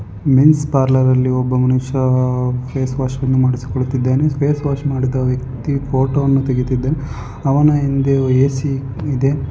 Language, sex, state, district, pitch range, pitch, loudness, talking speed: Kannada, male, Karnataka, Chamarajanagar, 130-140 Hz, 130 Hz, -16 LUFS, 115 wpm